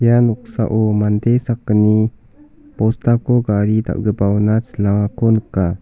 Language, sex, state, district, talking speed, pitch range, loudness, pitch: Garo, male, Meghalaya, South Garo Hills, 95 wpm, 105-120 Hz, -16 LUFS, 110 Hz